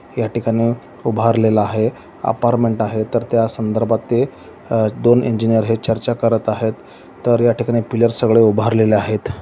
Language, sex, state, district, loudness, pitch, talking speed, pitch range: Marathi, male, Maharashtra, Solapur, -17 LUFS, 115 Hz, 155 wpm, 110-120 Hz